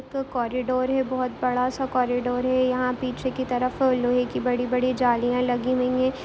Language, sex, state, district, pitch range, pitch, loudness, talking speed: Hindi, female, Bihar, Muzaffarpur, 250-255 Hz, 255 Hz, -24 LUFS, 175 wpm